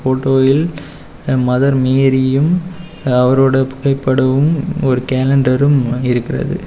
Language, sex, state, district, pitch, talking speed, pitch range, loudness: Tamil, male, Tamil Nadu, Kanyakumari, 135 Hz, 70 wpm, 130-145 Hz, -14 LUFS